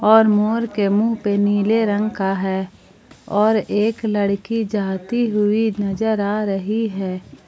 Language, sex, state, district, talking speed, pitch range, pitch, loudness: Hindi, female, Jharkhand, Palamu, 145 wpm, 200-220 Hz, 210 Hz, -19 LUFS